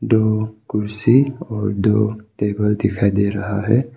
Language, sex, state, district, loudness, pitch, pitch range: Hindi, male, Arunachal Pradesh, Papum Pare, -19 LUFS, 105 Hz, 105-110 Hz